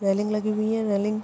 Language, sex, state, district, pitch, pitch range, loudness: Hindi, female, Maharashtra, Aurangabad, 210 Hz, 205-215 Hz, -25 LUFS